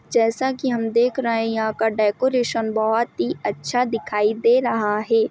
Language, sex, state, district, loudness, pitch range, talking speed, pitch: Hindi, female, Chhattisgarh, Kabirdham, -21 LUFS, 220-245 Hz, 180 wpm, 225 Hz